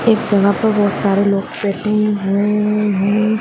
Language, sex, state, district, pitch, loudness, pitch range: Hindi, female, Uttar Pradesh, Deoria, 205 Hz, -16 LUFS, 200-210 Hz